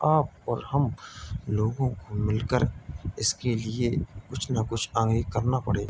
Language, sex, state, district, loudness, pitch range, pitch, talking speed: Hindi, male, Bihar, Bhagalpur, -28 LUFS, 105-125 Hz, 115 Hz, 140 wpm